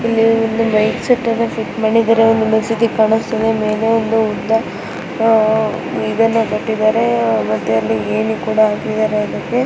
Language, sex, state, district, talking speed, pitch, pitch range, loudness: Kannada, female, Karnataka, Mysore, 135 wpm, 220 Hz, 215-225 Hz, -15 LUFS